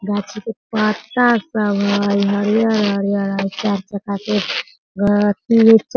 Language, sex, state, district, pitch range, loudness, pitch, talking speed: Hindi, female, Bihar, Sitamarhi, 200-220 Hz, -17 LUFS, 205 Hz, 110 wpm